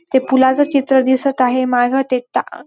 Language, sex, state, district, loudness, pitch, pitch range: Marathi, female, Maharashtra, Dhule, -15 LUFS, 260 Hz, 255-270 Hz